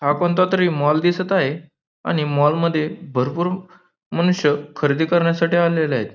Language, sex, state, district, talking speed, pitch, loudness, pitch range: Marathi, male, Maharashtra, Pune, 145 wpm, 165 Hz, -19 LUFS, 145-175 Hz